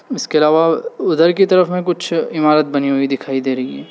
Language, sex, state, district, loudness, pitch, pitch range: Hindi, male, Uttar Pradesh, Lalitpur, -15 LUFS, 155 Hz, 135-175 Hz